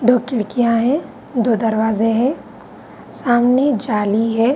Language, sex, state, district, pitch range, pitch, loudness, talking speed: Hindi, female, Bihar, Vaishali, 225-255 Hz, 235 Hz, -17 LUFS, 120 wpm